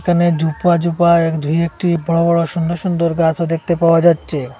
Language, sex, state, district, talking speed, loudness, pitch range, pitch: Bengali, male, Assam, Hailakandi, 155 wpm, -15 LUFS, 165-170 Hz, 170 Hz